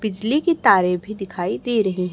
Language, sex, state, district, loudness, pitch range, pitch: Hindi, female, Chhattisgarh, Raipur, -19 LUFS, 180-225 Hz, 200 Hz